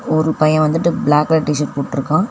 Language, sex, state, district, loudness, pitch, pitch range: Tamil, female, Tamil Nadu, Chennai, -16 LUFS, 155 Hz, 150-160 Hz